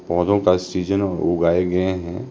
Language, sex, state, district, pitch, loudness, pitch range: Hindi, male, Himachal Pradesh, Shimla, 90 Hz, -20 LUFS, 90-95 Hz